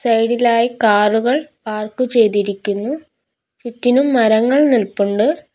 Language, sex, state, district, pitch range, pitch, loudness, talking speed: Malayalam, female, Kerala, Kollam, 215-255 Hz, 235 Hz, -16 LUFS, 85 wpm